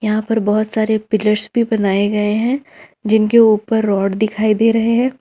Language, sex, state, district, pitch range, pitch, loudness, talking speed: Hindi, female, Jharkhand, Ranchi, 210-225 Hz, 215 Hz, -15 LUFS, 185 wpm